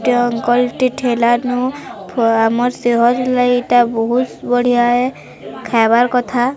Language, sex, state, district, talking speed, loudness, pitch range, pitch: Odia, female, Odisha, Sambalpur, 110 wpm, -15 LUFS, 235-250 Hz, 245 Hz